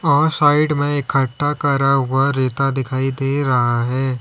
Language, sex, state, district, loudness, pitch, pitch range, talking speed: Hindi, male, Uttar Pradesh, Lalitpur, -17 LUFS, 135 Hz, 130-145 Hz, 155 wpm